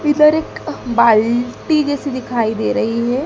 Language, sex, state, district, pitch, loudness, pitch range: Hindi, female, Madhya Pradesh, Dhar, 245 Hz, -16 LUFS, 230-295 Hz